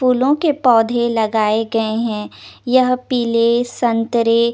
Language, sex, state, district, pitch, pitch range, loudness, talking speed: Hindi, female, Chandigarh, Chandigarh, 235 Hz, 225-250 Hz, -16 LUFS, 120 wpm